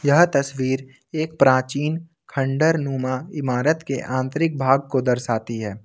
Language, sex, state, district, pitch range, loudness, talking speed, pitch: Hindi, male, Jharkhand, Ranchi, 130-155 Hz, -22 LUFS, 135 wpm, 135 Hz